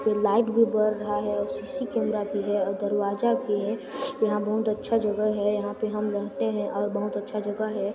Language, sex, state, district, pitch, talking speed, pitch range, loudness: Hindi, male, Chhattisgarh, Sarguja, 210 Hz, 225 wpm, 205-215 Hz, -26 LUFS